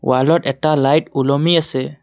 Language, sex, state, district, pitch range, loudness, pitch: Assamese, male, Assam, Kamrup Metropolitan, 135-155 Hz, -16 LUFS, 140 Hz